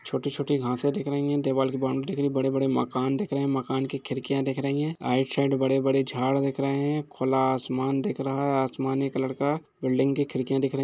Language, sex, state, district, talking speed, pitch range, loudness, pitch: Hindi, male, Bihar, Gopalganj, 230 wpm, 130-140 Hz, -26 LUFS, 135 Hz